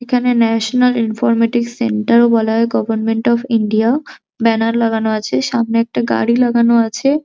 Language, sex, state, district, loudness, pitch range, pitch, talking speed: Bengali, male, West Bengal, Jhargram, -15 LUFS, 225-240 Hz, 230 Hz, 150 wpm